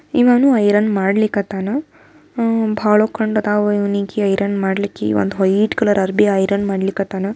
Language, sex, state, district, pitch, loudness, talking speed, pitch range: Kannada, female, Karnataka, Bijapur, 205 Hz, -17 LUFS, 120 wpm, 195-220 Hz